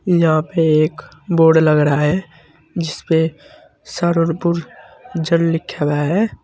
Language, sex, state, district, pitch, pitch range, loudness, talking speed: Hindi, male, Uttar Pradesh, Saharanpur, 165 Hz, 155-170 Hz, -17 LUFS, 120 wpm